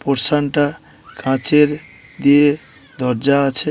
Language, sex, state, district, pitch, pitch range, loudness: Bengali, male, West Bengal, Paschim Medinipur, 145 Hz, 140-150 Hz, -15 LUFS